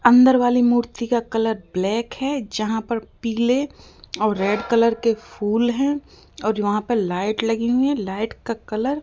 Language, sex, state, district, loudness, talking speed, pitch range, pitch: Hindi, female, Rajasthan, Jaipur, -21 LUFS, 175 wpm, 215-245 Hz, 230 Hz